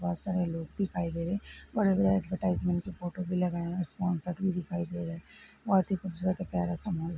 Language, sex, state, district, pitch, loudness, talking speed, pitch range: Hindi, female, Bihar, Darbhanga, 180 Hz, -32 LUFS, 225 wpm, 175-185 Hz